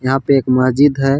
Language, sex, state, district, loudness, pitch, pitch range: Hindi, male, Jharkhand, Palamu, -13 LUFS, 135 Hz, 130-140 Hz